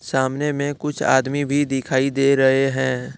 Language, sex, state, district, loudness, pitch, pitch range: Hindi, male, Jharkhand, Deoghar, -19 LUFS, 135 Hz, 130-145 Hz